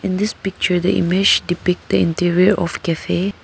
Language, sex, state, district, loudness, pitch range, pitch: English, female, Arunachal Pradesh, Papum Pare, -17 LUFS, 175-195 Hz, 180 Hz